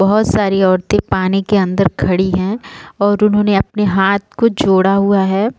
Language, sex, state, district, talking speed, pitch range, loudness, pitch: Hindi, female, Jharkhand, Sahebganj, 170 wpm, 190-210 Hz, -14 LUFS, 195 Hz